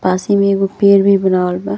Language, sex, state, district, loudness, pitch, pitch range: Bhojpuri, female, Uttar Pradesh, Deoria, -13 LUFS, 195 Hz, 185-200 Hz